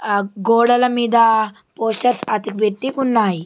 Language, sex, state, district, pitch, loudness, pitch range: Telugu, female, Telangana, Nalgonda, 225 Hz, -17 LUFS, 210-240 Hz